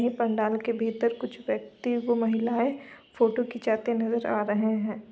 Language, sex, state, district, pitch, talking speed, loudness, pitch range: Hindi, female, Uttar Pradesh, Muzaffarnagar, 235 Hz, 165 wpm, -27 LUFS, 220-240 Hz